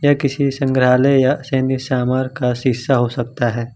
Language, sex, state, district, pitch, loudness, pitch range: Hindi, male, Jharkhand, Ranchi, 130 Hz, -17 LUFS, 125-135 Hz